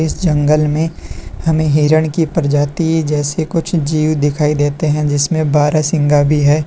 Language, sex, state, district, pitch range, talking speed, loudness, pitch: Hindi, male, Uttar Pradesh, Lalitpur, 145-160 Hz, 145 wpm, -14 LUFS, 150 Hz